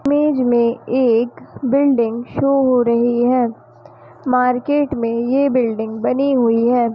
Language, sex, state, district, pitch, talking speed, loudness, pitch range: Hindi, female, Bihar, Vaishali, 245 Hz, 130 wpm, -17 LUFS, 235-270 Hz